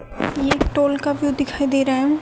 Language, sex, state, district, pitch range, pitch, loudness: Hindi, female, Haryana, Rohtak, 275-290 Hz, 285 Hz, -20 LUFS